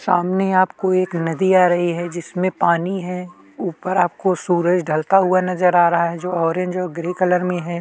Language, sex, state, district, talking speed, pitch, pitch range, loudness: Hindi, male, Chhattisgarh, Kabirdham, 200 wpm, 180 Hz, 170-185 Hz, -18 LUFS